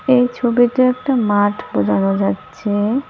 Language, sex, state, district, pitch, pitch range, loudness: Bengali, male, West Bengal, Cooch Behar, 215 Hz, 160-250 Hz, -17 LUFS